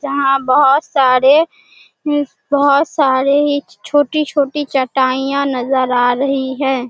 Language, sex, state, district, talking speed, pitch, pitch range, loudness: Hindi, female, Bihar, Darbhanga, 115 wpm, 280 Hz, 265-290 Hz, -14 LUFS